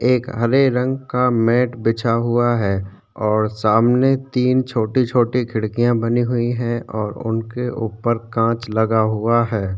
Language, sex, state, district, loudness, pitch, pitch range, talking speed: Hindi, male, Chhattisgarh, Sukma, -19 LUFS, 120 Hz, 110-125 Hz, 145 wpm